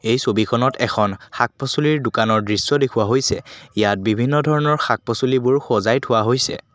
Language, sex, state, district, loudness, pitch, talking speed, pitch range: Assamese, male, Assam, Kamrup Metropolitan, -19 LUFS, 120 Hz, 140 wpm, 110-135 Hz